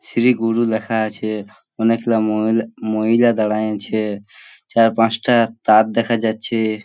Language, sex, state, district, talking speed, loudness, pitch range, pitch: Bengali, male, West Bengal, Purulia, 125 wpm, -18 LUFS, 110-115 Hz, 110 Hz